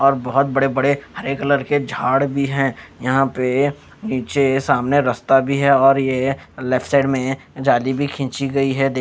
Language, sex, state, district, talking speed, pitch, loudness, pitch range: Hindi, male, Chandigarh, Chandigarh, 185 wpm, 135 Hz, -18 LUFS, 130-140 Hz